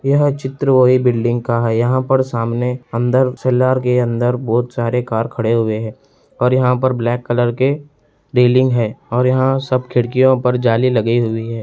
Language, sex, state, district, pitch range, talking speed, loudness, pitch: Hindi, male, Bihar, Saran, 120-130 Hz, 175 wpm, -16 LUFS, 125 Hz